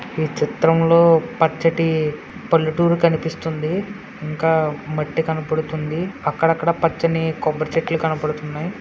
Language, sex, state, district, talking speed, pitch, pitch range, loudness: Telugu, male, Andhra Pradesh, Srikakulam, 90 wpm, 160 Hz, 155-165 Hz, -19 LUFS